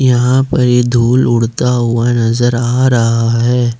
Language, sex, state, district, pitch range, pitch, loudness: Hindi, male, Jharkhand, Ranchi, 115-125 Hz, 120 Hz, -12 LUFS